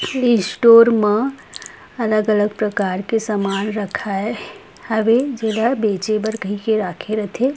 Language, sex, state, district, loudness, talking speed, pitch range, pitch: Chhattisgarhi, female, Chhattisgarh, Rajnandgaon, -18 LUFS, 135 wpm, 205-230 Hz, 215 Hz